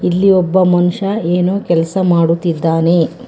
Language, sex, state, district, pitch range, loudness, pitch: Kannada, female, Karnataka, Bangalore, 170-190 Hz, -13 LUFS, 175 Hz